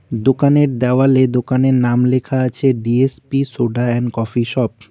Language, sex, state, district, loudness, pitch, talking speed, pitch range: Bengali, male, West Bengal, Cooch Behar, -16 LUFS, 125 Hz, 145 wpm, 120-135 Hz